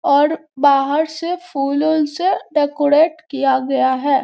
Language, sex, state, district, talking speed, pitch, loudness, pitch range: Hindi, female, Bihar, Gopalganj, 125 wpm, 290 Hz, -17 LUFS, 275-315 Hz